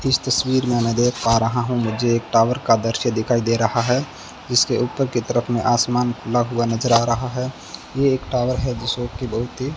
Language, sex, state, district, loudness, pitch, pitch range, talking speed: Hindi, male, Rajasthan, Bikaner, -20 LUFS, 120 Hz, 115-125 Hz, 225 wpm